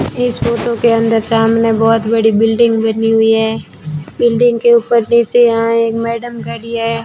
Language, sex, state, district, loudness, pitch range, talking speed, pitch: Hindi, female, Rajasthan, Bikaner, -12 LUFS, 225-235 Hz, 170 wpm, 230 Hz